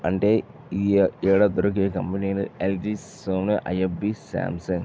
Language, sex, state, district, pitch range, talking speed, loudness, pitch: Telugu, male, Andhra Pradesh, Chittoor, 95-100 Hz, 125 wpm, -24 LUFS, 95 Hz